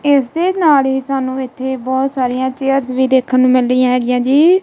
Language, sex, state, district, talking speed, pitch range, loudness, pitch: Punjabi, female, Punjab, Kapurthala, 205 wpm, 255-275 Hz, -14 LUFS, 260 Hz